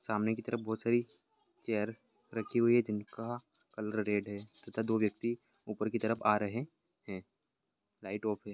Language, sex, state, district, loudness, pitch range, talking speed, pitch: Hindi, male, Bihar, Sitamarhi, -35 LUFS, 105-115 Hz, 175 wpm, 110 Hz